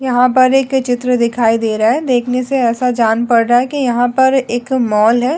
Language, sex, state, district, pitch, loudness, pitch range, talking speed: Hindi, female, Goa, North and South Goa, 245 Hz, -13 LUFS, 235-255 Hz, 235 wpm